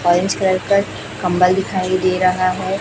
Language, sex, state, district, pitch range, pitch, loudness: Hindi, female, Chhattisgarh, Raipur, 185-190 Hz, 185 Hz, -17 LUFS